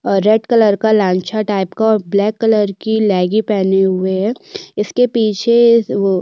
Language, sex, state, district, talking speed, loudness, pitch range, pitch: Hindi, female, Chhattisgarh, Korba, 185 wpm, -14 LUFS, 195-225 Hz, 215 Hz